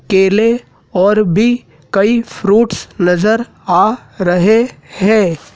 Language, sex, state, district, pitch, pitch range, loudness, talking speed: Hindi, male, Madhya Pradesh, Dhar, 210 Hz, 185-225 Hz, -13 LUFS, 95 wpm